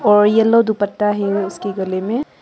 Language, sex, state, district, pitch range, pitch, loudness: Hindi, female, Arunachal Pradesh, Papum Pare, 200-220 Hz, 205 Hz, -17 LUFS